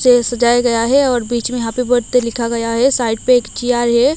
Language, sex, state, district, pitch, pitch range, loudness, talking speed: Hindi, female, Odisha, Malkangiri, 240 Hz, 235-250 Hz, -15 LUFS, 245 wpm